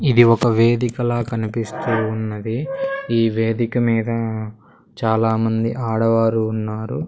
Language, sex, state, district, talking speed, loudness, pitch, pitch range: Telugu, male, Andhra Pradesh, Sri Satya Sai, 100 wpm, -19 LUFS, 115 Hz, 110-120 Hz